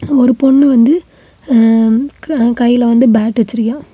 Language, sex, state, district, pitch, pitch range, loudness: Tamil, female, Tamil Nadu, Kanyakumari, 240 Hz, 230-270 Hz, -11 LUFS